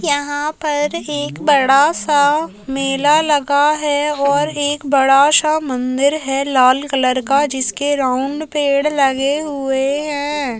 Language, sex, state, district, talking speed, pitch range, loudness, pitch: Hindi, female, Chhattisgarh, Raigarh, 130 wpm, 270-295 Hz, -16 LUFS, 285 Hz